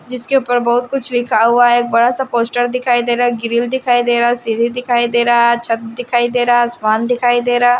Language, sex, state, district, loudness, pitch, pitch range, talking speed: Hindi, female, Haryana, Charkhi Dadri, -14 LUFS, 240 Hz, 235-245 Hz, 230 wpm